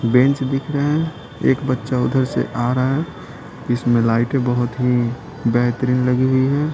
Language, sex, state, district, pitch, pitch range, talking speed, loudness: Hindi, male, Bihar, Patna, 125 Hz, 120-135 Hz, 170 wpm, -19 LUFS